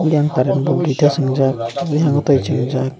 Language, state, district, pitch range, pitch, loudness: Kokborok, Tripura, Dhalai, 130-150 Hz, 140 Hz, -17 LUFS